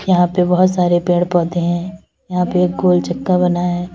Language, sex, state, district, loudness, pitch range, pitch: Hindi, female, Uttar Pradesh, Lalitpur, -16 LUFS, 175-180 Hz, 180 Hz